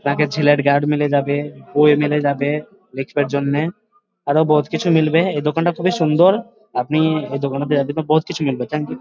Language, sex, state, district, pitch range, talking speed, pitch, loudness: Bengali, male, West Bengal, Dakshin Dinajpur, 145-160 Hz, 155 wpm, 150 Hz, -18 LUFS